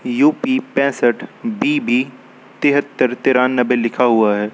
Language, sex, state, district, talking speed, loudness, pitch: Hindi, male, Uttar Pradesh, Lucknow, 120 wpm, -16 LUFS, 130 Hz